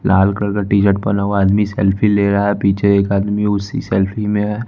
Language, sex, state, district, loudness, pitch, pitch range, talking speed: Hindi, male, Bihar, West Champaran, -15 LUFS, 100 Hz, 100-105 Hz, 245 wpm